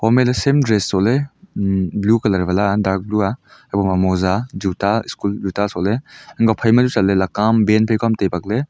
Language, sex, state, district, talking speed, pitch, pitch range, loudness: Wancho, male, Arunachal Pradesh, Longding, 205 wpm, 105 Hz, 95-115 Hz, -18 LUFS